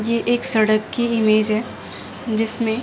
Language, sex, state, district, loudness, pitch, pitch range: Hindi, male, Delhi, New Delhi, -16 LUFS, 225 Hz, 215-235 Hz